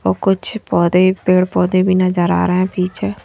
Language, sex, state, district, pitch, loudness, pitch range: Hindi, female, Madhya Pradesh, Bhopal, 185 Hz, -15 LUFS, 170-185 Hz